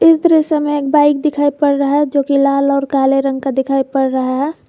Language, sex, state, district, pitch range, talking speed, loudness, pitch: Hindi, female, Jharkhand, Garhwa, 275-295 Hz, 255 wpm, -14 LUFS, 280 Hz